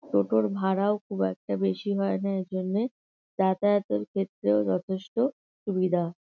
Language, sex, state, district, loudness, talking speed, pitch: Bengali, female, West Bengal, North 24 Parganas, -28 LUFS, 125 wpm, 185 Hz